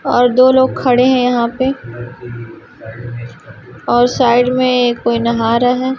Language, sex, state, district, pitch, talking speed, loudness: Hindi, female, Chhattisgarh, Raipur, 240 Hz, 130 wpm, -13 LUFS